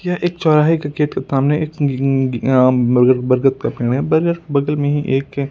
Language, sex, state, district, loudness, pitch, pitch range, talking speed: Hindi, male, Punjab, Kapurthala, -16 LUFS, 140 Hz, 130-155 Hz, 230 wpm